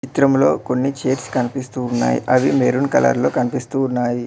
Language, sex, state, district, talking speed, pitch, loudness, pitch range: Telugu, male, Telangana, Mahabubabad, 170 wpm, 130 Hz, -18 LUFS, 120-135 Hz